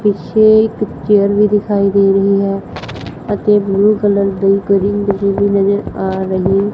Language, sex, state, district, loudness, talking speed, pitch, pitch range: Punjabi, female, Punjab, Fazilka, -13 LUFS, 140 wpm, 200 Hz, 195-205 Hz